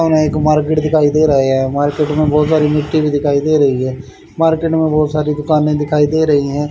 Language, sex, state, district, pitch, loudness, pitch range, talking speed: Hindi, male, Haryana, Charkhi Dadri, 150 Hz, -14 LUFS, 145-155 Hz, 235 wpm